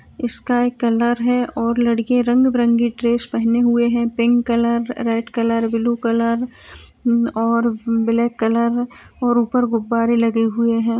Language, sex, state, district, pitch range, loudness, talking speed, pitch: Hindi, female, Uttar Pradesh, Jyotiba Phule Nagar, 230-240 Hz, -18 LUFS, 145 wpm, 235 Hz